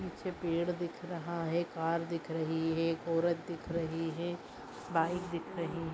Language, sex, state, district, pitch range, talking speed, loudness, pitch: Hindi, female, Maharashtra, Nagpur, 165-175 Hz, 180 wpm, -36 LUFS, 170 Hz